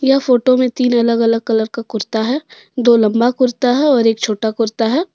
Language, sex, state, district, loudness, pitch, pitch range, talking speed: Hindi, female, Jharkhand, Deoghar, -15 LUFS, 240 Hz, 225-255 Hz, 220 wpm